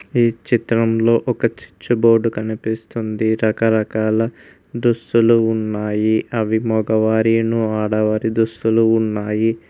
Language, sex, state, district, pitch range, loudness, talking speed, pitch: Telugu, male, Telangana, Mahabubabad, 110-115 Hz, -18 LUFS, 85 wpm, 110 Hz